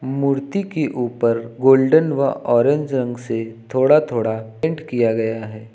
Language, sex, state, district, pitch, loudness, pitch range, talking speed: Hindi, male, Uttar Pradesh, Lucknow, 125 Hz, -19 LUFS, 115-140 Hz, 145 wpm